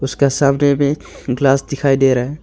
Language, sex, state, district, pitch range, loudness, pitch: Hindi, male, Arunachal Pradesh, Longding, 135-140 Hz, -16 LUFS, 140 Hz